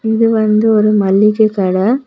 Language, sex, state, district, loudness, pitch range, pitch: Tamil, female, Tamil Nadu, Kanyakumari, -12 LUFS, 210-220 Hz, 215 Hz